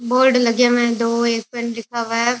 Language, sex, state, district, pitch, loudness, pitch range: Rajasthani, female, Rajasthan, Churu, 235 Hz, -18 LUFS, 230-245 Hz